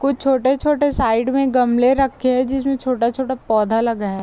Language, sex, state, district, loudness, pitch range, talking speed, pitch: Hindi, female, Uttar Pradesh, Deoria, -18 LUFS, 235-270 Hz, 170 wpm, 260 Hz